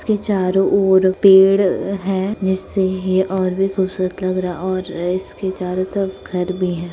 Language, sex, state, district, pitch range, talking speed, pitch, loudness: Hindi, female, Bihar, Muzaffarpur, 185-195 Hz, 200 wpm, 190 Hz, -18 LUFS